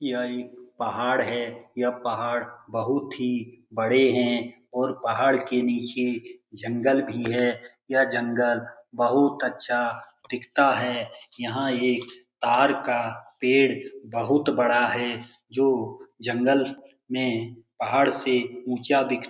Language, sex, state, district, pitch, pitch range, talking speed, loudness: Hindi, male, Bihar, Lakhisarai, 125 Hz, 120-135 Hz, 120 wpm, -25 LUFS